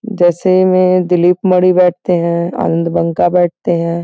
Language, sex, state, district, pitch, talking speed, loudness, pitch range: Hindi, female, Uttar Pradesh, Gorakhpur, 175 Hz, 105 wpm, -12 LUFS, 170-185 Hz